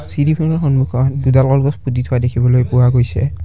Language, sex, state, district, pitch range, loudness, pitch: Assamese, male, Assam, Kamrup Metropolitan, 125-140 Hz, -14 LUFS, 130 Hz